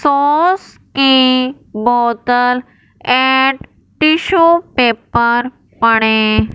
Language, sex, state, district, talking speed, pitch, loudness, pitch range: Hindi, male, Punjab, Fazilka, 65 wpm, 255 Hz, -13 LUFS, 235-285 Hz